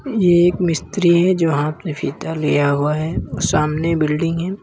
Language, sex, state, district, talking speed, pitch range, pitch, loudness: Hindi, male, Uttar Pradesh, Lalitpur, 205 wpm, 150-175 Hz, 165 Hz, -18 LUFS